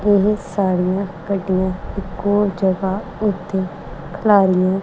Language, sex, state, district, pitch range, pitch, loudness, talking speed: Punjabi, female, Punjab, Kapurthala, 185-200 Hz, 195 Hz, -19 LUFS, 85 wpm